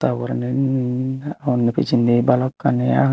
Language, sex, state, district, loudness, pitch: Chakma, male, Tripura, Unakoti, -19 LUFS, 125 Hz